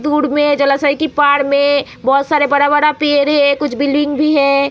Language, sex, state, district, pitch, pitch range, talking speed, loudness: Hindi, female, Bihar, Jamui, 285 Hz, 280-295 Hz, 190 wpm, -13 LUFS